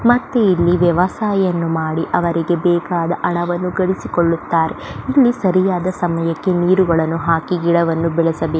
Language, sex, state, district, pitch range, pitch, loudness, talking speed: Kannada, female, Karnataka, Belgaum, 165-185 Hz, 175 Hz, -17 LUFS, 110 wpm